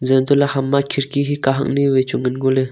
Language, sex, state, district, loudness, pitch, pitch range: Wancho, male, Arunachal Pradesh, Longding, -17 LUFS, 135 Hz, 130-140 Hz